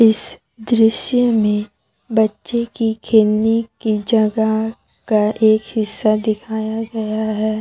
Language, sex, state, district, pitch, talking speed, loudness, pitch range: Hindi, female, Jharkhand, Deoghar, 220 Hz, 110 wpm, -17 LUFS, 215-225 Hz